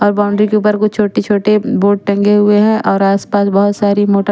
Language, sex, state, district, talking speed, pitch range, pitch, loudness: Hindi, female, Chandigarh, Chandigarh, 235 wpm, 200-210 Hz, 205 Hz, -12 LUFS